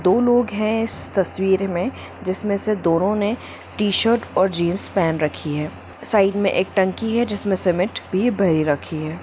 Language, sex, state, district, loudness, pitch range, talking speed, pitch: Hindi, female, Jharkhand, Sahebganj, -20 LUFS, 175-215 Hz, 170 wpm, 195 Hz